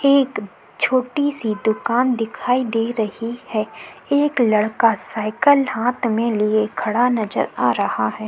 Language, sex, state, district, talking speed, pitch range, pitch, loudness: Hindi, female, Uttar Pradesh, Jyotiba Phule Nagar, 140 wpm, 215-250 Hz, 230 Hz, -19 LUFS